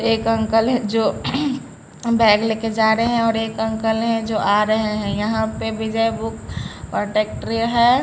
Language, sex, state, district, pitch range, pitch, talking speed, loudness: Hindi, female, Bihar, Patna, 220-230 Hz, 225 Hz, 180 wpm, -20 LUFS